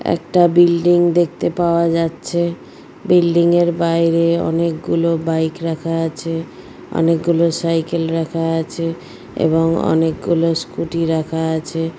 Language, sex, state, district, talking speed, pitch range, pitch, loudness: Bengali, female, West Bengal, Purulia, 105 wpm, 165-170 Hz, 165 Hz, -17 LUFS